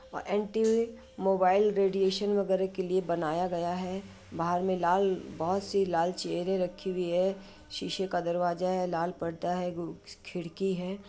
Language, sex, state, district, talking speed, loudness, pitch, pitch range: Hindi, female, Bihar, Madhepura, 155 wpm, -30 LUFS, 185 Hz, 175-195 Hz